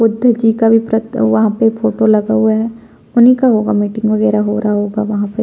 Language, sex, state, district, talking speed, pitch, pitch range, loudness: Hindi, female, Chhattisgarh, Sukma, 210 wpm, 220 Hz, 215-225 Hz, -13 LUFS